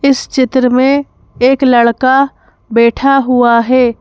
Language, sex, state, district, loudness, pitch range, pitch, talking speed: Hindi, female, Madhya Pradesh, Bhopal, -11 LUFS, 240-270 Hz, 255 Hz, 120 wpm